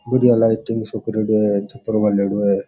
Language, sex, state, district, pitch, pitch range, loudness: Rajasthani, male, Rajasthan, Churu, 110 Hz, 105-115 Hz, -18 LUFS